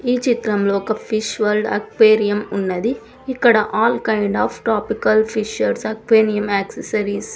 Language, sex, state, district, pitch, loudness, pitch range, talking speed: Telugu, female, Andhra Pradesh, Sri Satya Sai, 215 Hz, -18 LUFS, 210-225 Hz, 130 wpm